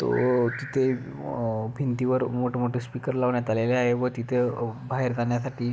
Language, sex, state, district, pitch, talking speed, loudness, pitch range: Marathi, male, Maharashtra, Pune, 125 Hz, 155 wpm, -26 LUFS, 120-125 Hz